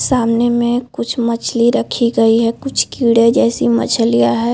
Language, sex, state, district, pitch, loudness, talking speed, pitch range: Hindi, female, Chhattisgarh, Bilaspur, 235 Hz, -14 LUFS, 170 wpm, 225-240 Hz